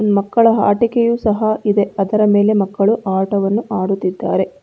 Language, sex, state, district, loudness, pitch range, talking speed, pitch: Kannada, female, Karnataka, Bangalore, -15 LUFS, 195-215 Hz, 105 wpm, 205 Hz